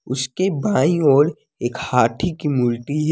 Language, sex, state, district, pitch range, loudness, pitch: Hindi, male, Jharkhand, Deoghar, 125-160 Hz, -19 LUFS, 140 Hz